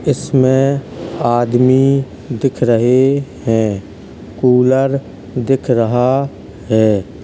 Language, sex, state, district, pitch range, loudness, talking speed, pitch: Hindi, male, Uttar Pradesh, Hamirpur, 115-135 Hz, -14 LUFS, 75 wpm, 125 Hz